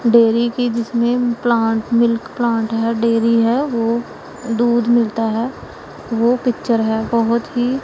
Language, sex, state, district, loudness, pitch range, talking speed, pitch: Hindi, female, Punjab, Pathankot, -17 LUFS, 230-240 Hz, 140 wpm, 235 Hz